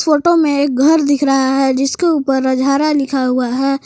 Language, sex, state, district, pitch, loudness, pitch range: Hindi, female, Jharkhand, Palamu, 275 Hz, -14 LUFS, 265-295 Hz